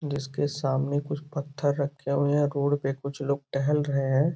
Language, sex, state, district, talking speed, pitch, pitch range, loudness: Hindi, male, Uttar Pradesh, Gorakhpur, 195 wpm, 140 Hz, 140-145 Hz, -27 LUFS